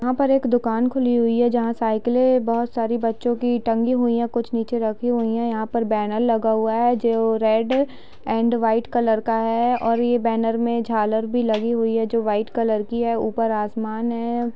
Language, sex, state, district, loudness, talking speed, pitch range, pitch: Hindi, female, Bihar, Sitamarhi, -21 LUFS, 210 wpm, 225-240 Hz, 230 Hz